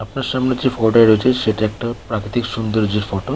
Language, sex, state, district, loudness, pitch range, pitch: Bengali, male, West Bengal, Kolkata, -17 LUFS, 110-125 Hz, 115 Hz